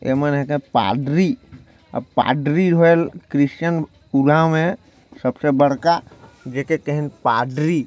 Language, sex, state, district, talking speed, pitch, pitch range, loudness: Chhattisgarhi, male, Chhattisgarh, Jashpur, 115 wpm, 145 Hz, 135-160 Hz, -19 LUFS